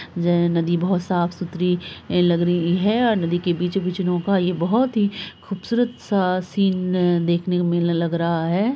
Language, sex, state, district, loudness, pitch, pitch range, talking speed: Hindi, female, Bihar, Araria, -21 LUFS, 180 Hz, 175-195 Hz, 160 wpm